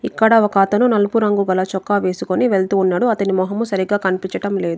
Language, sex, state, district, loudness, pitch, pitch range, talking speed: Telugu, female, Telangana, Adilabad, -17 LUFS, 200 Hz, 190-215 Hz, 175 wpm